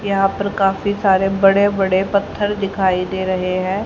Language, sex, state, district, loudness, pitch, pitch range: Hindi, female, Haryana, Charkhi Dadri, -17 LUFS, 195 Hz, 190-200 Hz